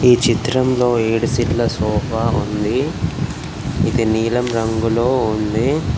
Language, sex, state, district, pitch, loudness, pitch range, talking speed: Telugu, male, Telangana, Komaram Bheem, 115 Hz, -18 LUFS, 110-120 Hz, 100 wpm